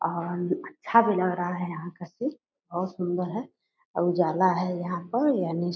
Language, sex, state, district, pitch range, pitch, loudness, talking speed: Hindi, female, Bihar, Purnia, 175-225 Hz, 180 Hz, -27 LUFS, 190 wpm